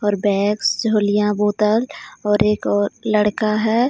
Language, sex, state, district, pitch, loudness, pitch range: Hindi, female, Jharkhand, Ranchi, 210 Hz, -18 LUFS, 205-220 Hz